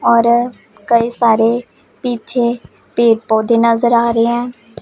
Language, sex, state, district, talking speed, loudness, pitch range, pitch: Hindi, female, Punjab, Pathankot, 125 wpm, -14 LUFS, 230-240 Hz, 235 Hz